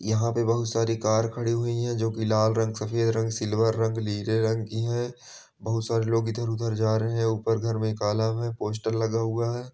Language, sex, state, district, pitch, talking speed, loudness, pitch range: Hindi, male, Bihar, Bhagalpur, 115 Hz, 230 wpm, -26 LUFS, 110-115 Hz